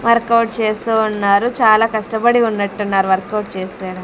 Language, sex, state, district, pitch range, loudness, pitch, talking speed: Telugu, female, Andhra Pradesh, Sri Satya Sai, 200-230 Hz, -16 LUFS, 215 Hz, 120 wpm